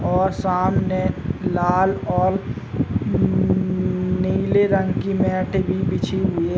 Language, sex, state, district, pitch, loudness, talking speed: Hindi, male, Chhattisgarh, Bilaspur, 180 Hz, -21 LUFS, 130 wpm